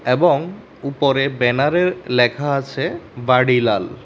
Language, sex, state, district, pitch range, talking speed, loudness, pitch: Bengali, male, Tripura, West Tripura, 125-145 Hz, 105 wpm, -18 LUFS, 135 Hz